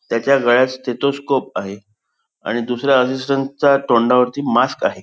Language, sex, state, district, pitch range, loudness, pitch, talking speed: Marathi, male, Goa, North and South Goa, 120-140 Hz, -17 LUFS, 130 Hz, 130 wpm